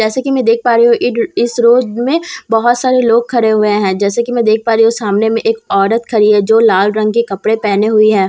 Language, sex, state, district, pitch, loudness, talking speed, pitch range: Hindi, female, Bihar, Katihar, 225 Hz, -12 LUFS, 275 wpm, 215-235 Hz